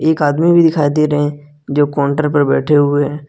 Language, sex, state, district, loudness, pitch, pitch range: Hindi, male, Jharkhand, Ranchi, -14 LUFS, 145 Hz, 145-150 Hz